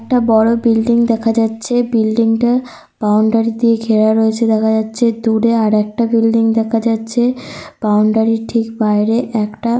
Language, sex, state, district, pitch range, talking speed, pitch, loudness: Bengali, female, Jharkhand, Sahebganj, 220-235 Hz, 45 wpm, 225 Hz, -14 LUFS